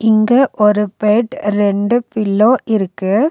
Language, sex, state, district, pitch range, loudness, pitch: Tamil, female, Tamil Nadu, Nilgiris, 205-240 Hz, -14 LUFS, 215 Hz